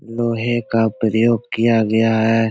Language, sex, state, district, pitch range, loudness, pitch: Hindi, male, Bihar, Supaul, 110-115 Hz, -17 LUFS, 115 Hz